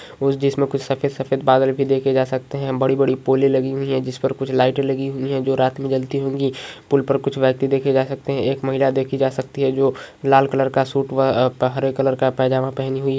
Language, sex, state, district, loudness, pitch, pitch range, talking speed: Magahi, male, Bihar, Gaya, -19 LUFS, 135 Hz, 130-135 Hz, 260 wpm